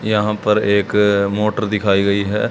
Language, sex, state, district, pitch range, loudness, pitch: Hindi, male, Haryana, Charkhi Dadri, 100-105 Hz, -16 LUFS, 105 Hz